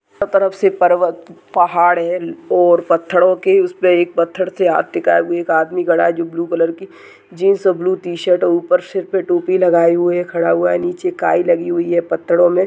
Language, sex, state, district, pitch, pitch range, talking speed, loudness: Hindi, male, Uttar Pradesh, Budaun, 175 Hz, 170-185 Hz, 215 wpm, -15 LUFS